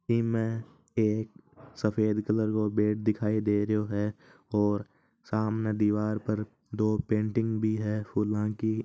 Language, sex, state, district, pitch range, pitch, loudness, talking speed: Marwari, male, Rajasthan, Nagaur, 105-110 Hz, 110 Hz, -29 LUFS, 150 wpm